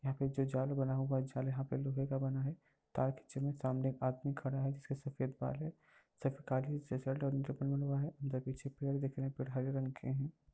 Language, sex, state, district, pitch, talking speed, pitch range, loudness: Hindi, male, Uttar Pradesh, Varanasi, 135 Hz, 205 wpm, 130-140 Hz, -39 LUFS